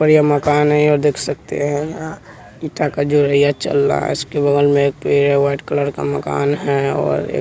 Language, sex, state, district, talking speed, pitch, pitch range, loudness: Hindi, male, Bihar, West Champaran, 220 wpm, 145 Hz, 140-150 Hz, -16 LUFS